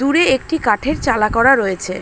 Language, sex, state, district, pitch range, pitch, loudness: Bengali, female, West Bengal, Dakshin Dinajpur, 215-280 Hz, 265 Hz, -15 LUFS